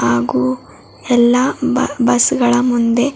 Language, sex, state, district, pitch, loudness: Kannada, female, Karnataka, Bidar, 240 Hz, -14 LUFS